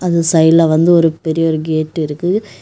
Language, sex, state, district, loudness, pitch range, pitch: Tamil, female, Tamil Nadu, Kanyakumari, -13 LUFS, 160-170 Hz, 165 Hz